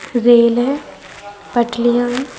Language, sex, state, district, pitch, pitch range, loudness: Hindi, female, Bihar, Vaishali, 240 Hz, 235-245 Hz, -15 LUFS